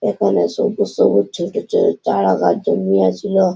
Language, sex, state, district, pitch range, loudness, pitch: Bengali, male, West Bengal, Malda, 95-135 Hz, -17 LUFS, 95 Hz